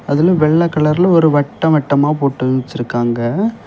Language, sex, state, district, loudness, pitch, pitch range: Tamil, male, Tamil Nadu, Kanyakumari, -14 LUFS, 150 Hz, 130-165 Hz